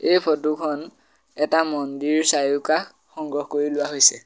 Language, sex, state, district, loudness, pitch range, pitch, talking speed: Assamese, male, Assam, Sonitpur, -22 LUFS, 145-155 Hz, 150 Hz, 125 wpm